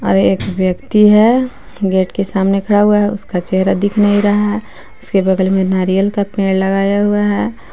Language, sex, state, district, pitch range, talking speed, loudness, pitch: Hindi, female, Jharkhand, Palamu, 190-205 Hz, 185 wpm, -14 LUFS, 195 Hz